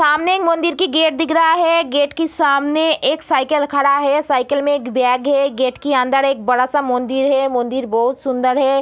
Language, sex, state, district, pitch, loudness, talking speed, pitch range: Hindi, female, Bihar, Kishanganj, 280 Hz, -16 LUFS, 215 wpm, 260-315 Hz